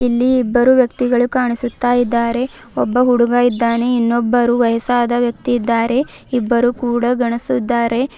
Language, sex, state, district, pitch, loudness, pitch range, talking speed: Kannada, female, Karnataka, Bidar, 245 Hz, -16 LUFS, 235-245 Hz, 115 wpm